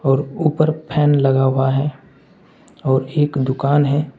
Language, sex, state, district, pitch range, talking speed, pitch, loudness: Hindi, male, Uttar Pradesh, Saharanpur, 135-155 Hz, 145 wpm, 145 Hz, -17 LUFS